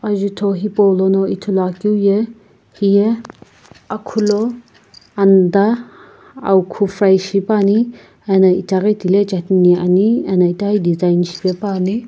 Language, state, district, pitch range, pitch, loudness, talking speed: Sumi, Nagaland, Kohima, 190-210 Hz, 200 Hz, -15 LUFS, 45 wpm